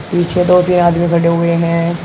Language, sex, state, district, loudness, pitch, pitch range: Hindi, male, Uttar Pradesh, Shamli, -13 LUFS, 170 Hz, 170-175 Hz